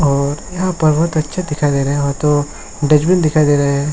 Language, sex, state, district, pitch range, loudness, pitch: Hindi, male, Jharkhand, Sahebganj, 140-155 Hz, -15 LUFS, 150 Hz